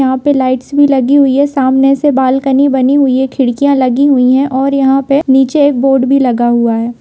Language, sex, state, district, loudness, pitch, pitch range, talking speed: Hindi, female, Bihar, Kishanganj, -10 LUFS, 270 Hz, 260-280 Hz, 230 wpm